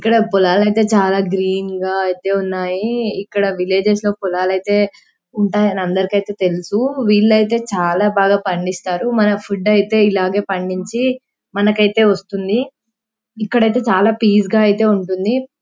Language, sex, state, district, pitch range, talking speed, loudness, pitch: Telugu, female, Telangana, Karimnagar, 190-220 Hz, 125 wpm, -16 LUFS, 205 Hz